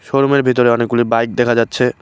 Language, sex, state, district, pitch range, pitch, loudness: Bengali, male, West Bengal, Cooch Behar, 115-130 Hz, 120 Hz, -14 LUFS